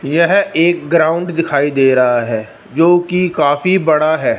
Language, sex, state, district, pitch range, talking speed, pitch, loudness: Hindi, male, Punjab, Fazilka, 140-175 Hz, 165 wpm, 165 Hz, -13 LUFS